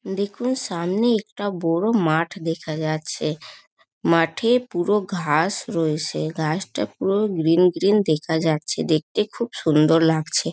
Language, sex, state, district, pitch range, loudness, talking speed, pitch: Bengali, female, West Bengal, North 24 Parganas, 160-205 Hz, -21 LUFS, 120 wpm, 165 Hz